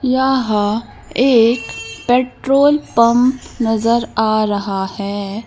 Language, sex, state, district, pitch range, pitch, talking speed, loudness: Hindi, female, Madhya Pradesh, Bhopal, 210-255 Hz, 230 Hz, 90 wpm, -16 LUFS